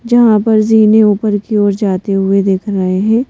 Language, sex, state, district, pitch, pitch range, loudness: Hindi, female, Madhya Pradesh, Bhopal, 210 Hz, 195-220 Hz, -11 LUFS